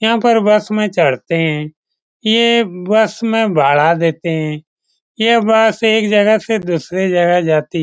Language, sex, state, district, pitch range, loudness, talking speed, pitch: Hindi, male, Bihar, Saran, 165-220 Hz, -14 LUFS, 160 wpm, 205 Hz